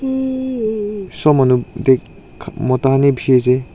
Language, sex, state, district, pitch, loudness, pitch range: Nagamese, male, Nagaland, Dimapur, 140 Hz, -16 LUFS, 130-215 Hz